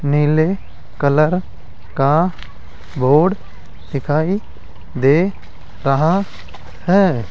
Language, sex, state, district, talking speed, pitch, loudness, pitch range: Hindi, male, Rajasthan, Jaipur, 65 wpm, 150 Hz, -17 LUFS, 135-175 Hz